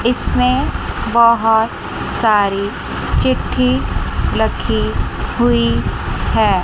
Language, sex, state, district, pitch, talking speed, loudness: Hindi, female, Chandigarh, Chandigarh, 195 Hz, 65 wpm, -16 LUFS